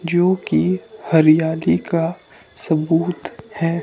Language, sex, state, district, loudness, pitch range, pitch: Hindi, male, Himachal Pradesh, Shimla, -18 LUFS, 160-180 Hz, 165 Hz